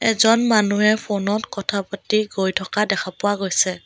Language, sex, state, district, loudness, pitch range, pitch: Assamese, female, Assam, Kamrup Metropolitan, -20 LUFS, 195-215 Hz, 205 Hz